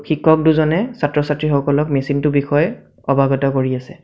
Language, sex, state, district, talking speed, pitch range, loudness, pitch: Assamese, male, Assam, Sonitpur, 135 wpm, 140-155 Hz, -17 LUFS, 145 Hz